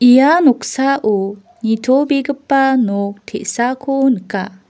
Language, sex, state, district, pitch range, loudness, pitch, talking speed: Garo, female, Meghalaya, West Garo Hills, 205-275 Hz, -15 LUFS, 245 Hz, 75 wpm